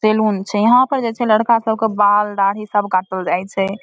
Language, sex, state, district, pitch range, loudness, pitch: Maithili, female, Bihar, Samastipur, 195-220 Hz, -16 LUFS, 210 Hz